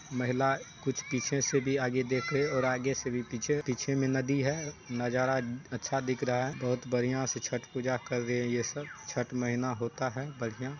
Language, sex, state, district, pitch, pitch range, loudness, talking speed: Hindi, male, Bihar, Saharsa, 130 Hz, 125-135 Hz, -32 LUFS, 200 wpm